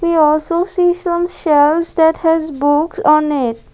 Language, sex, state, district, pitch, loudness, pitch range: English, female, Assam, Kamrup Metropolitan, 320 Hz, -14 LUFS, 300-345 Hz